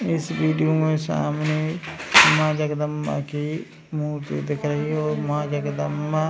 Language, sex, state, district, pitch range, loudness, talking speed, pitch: Hindi, male, Bihar, Samastipur, 145-155 Hz, -22 LUFS, 145 wpm, 150 Hz